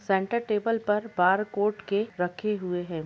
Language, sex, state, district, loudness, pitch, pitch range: Hindi, female, Bihar, Gopalganj, -27 LUFS, 205 Hz, 180-215 Hz